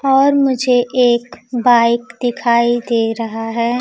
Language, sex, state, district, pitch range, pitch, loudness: Hindi, female, Bihar, Kaimur, 235-250 Hz, 240 Hz, -15 LUFS